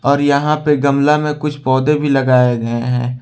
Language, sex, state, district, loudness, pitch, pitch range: Hindi, male, Jharkhand, Ranchi, -15 LUFS, 140 Hz, 125-150 Hz